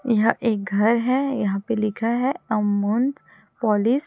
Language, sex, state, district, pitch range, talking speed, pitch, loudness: Hindi, female, Chhattisgarh, Raipur, 210-250 Hz, 160 wpm, 225 Hz, -22 LUFS